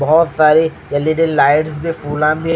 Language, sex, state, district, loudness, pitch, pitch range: Hindi, male, Chhattisgarh, Raipur, -14 LUFS, 155 Hz, 150-160 Hz